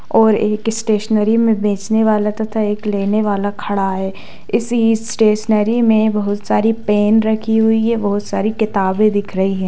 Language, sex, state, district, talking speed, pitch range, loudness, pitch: Hindi, female, Bihar, Sitamarhi, 175 wpm, 205-220 Hz, -16 LUFS, 215 Hz